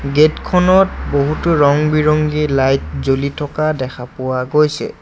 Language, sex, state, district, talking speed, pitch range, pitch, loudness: Assamese, male, Assam, Sonitpur, 120 wpm, 135-155 Hz, 145 Hz, -15 LUFS